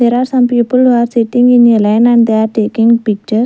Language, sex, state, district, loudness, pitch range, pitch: English, female, Punjab, Fazilka, -10 LUFS, 220-245 Hz, 235 Hz